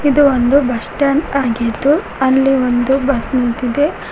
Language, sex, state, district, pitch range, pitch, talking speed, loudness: Kannada, female, Karnataka, Koppal, 245-280 Hz, 265 Hz, 130 wpm, -14 LUFS